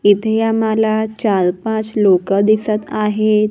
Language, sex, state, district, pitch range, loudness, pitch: Marathi, female, Maharashtra, Gondia, 205-220 Hz, -16 LUFS, 215 Hz